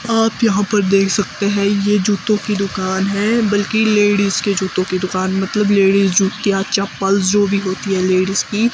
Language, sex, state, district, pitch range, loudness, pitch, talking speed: Hindi, female, Himachal Pradesh, Shimla, 195-205 Hz, -16 LUFS, 200 Hz, 185 wpm